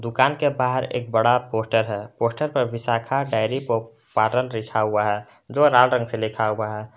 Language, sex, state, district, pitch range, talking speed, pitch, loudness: Hindi, male, Jharkhand, Garhwa, 110-125 Hz, 190 wpm, 115 Hz, -22 LUFS